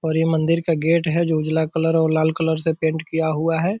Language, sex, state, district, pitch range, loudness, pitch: Hindi, male, Bihar, Purnia, 160-165 Hz, -20 LUFS, 160 Hz